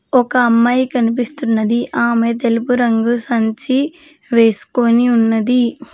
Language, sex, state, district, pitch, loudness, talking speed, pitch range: Telugu, female, Telangana, Mahabubabad, 240 Hz, -15 LUFS, 90 wpm, 230-250 Hz